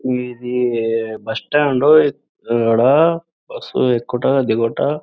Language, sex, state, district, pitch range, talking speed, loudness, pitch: Telugu, male, Andhra Pradesh, Anantapur, 115-150 Hz, 85 wpm, -17 LUFS, 125 Hz